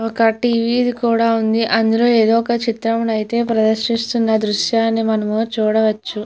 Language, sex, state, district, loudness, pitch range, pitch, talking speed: Telugu, female, Andhra Pradesh, Chittoor, -16 LUFS, 220-230 Hz, 225 Hz, 115 wpm